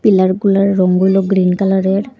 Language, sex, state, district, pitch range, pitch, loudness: Bengali, female, Assam, Hailakandi, 185-195 Hz, 195 Hz, -13 LUFS